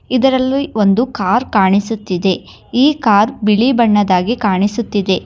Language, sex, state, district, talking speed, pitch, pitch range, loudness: Kannada, female, Karnataka, Bangalore, 100 wpm, 215 Hz, 200-250 Hz, -14 LUFS